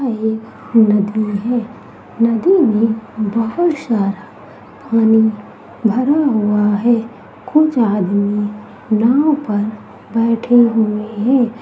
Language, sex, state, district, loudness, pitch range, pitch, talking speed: Hindi, female, Bihar, Saharsa, -15 LUFS, 215-240 Hz, 225 Hz, 100 wpm